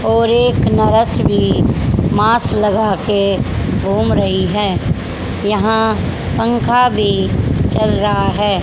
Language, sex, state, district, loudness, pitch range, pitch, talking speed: Hindi, female, Haryana, Charkhi Dadri, -14 LUFS, 195-225 Hz, 210 Hz, 110 wpm